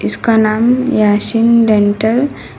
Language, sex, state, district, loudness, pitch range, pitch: Hindi, female, Karnataka, Koppal, -12 LUFS, 210-235 Hz, 220 Hz